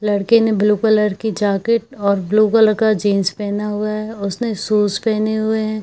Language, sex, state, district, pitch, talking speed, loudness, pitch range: Hindi, female, Jharkhand, Jamtara, 215 Hz, 195 wpm, -17 LUFS, 205-220 Hz